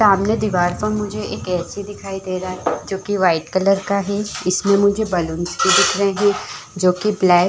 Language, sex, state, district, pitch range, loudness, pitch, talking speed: Chhattisgarhi, female, Chhattisgarh, Jashpur, 180-205 Hz, -18 LUFS, 195 Hz, 215 wpm